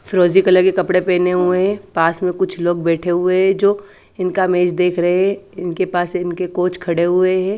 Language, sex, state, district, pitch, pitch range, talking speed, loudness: Hindi, female, Haryana, Charkhi Dadri, 180 Hz, 180-190 Hz, 205 wpm, -16 LUFS